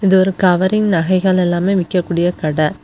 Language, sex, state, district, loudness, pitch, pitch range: Tamil, female, Tamil Nadu, Kanyakumari, -15 LUFS, 185 Hz, 175-190 Hz